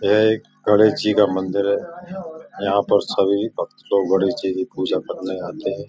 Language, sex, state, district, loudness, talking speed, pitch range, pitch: Hindi, male, Uttar Pradesh, Etah, -20 LUFS, 195 wpm, 100-110 Hz, 100 Hz